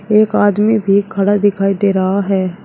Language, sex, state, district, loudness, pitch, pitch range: Hindi, female, Uttar Pradesh, Shamli, -14 LUFS, 200 Hz, 195-205 Hz